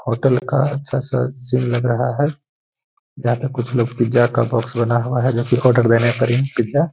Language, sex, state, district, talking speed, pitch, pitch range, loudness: Hindi, male, Bihar, Gaya, 225 wpm, 125 Hz, 120-135 Hz, -18 LUFS